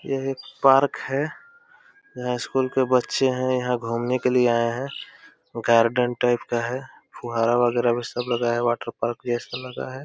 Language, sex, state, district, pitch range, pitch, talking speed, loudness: Hindi, male, Uttar Pradesh, Deoria, 120-130 Hz, 125 Hz, 175 wpm, -23 LUFS